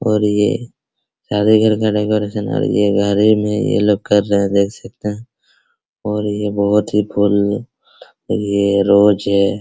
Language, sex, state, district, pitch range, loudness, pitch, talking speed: Hindi, male, Bihar, Araria, 100-105 Hz, -16 LUFS, 105 Hz, 120 wpm